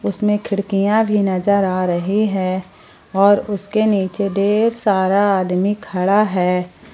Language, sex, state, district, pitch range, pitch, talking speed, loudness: Hindi, female, Jharkhand, Palamu, 185-205 Hz, 200 Hz, 130 wpm, -17 LUFS